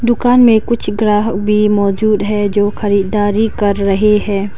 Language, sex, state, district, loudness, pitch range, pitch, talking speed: Hindi, female, Arunachal Pradesh, Lower Dibang Valley, -13 LUFS, 205-215 Hz, 210 Hz, 155 wpm